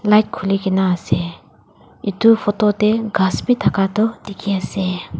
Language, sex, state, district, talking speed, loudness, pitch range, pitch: Nagamese, female, Nagaland, Dimapur, 160 wpm, -18 LUFS, 190-215 Hz, 200 Hz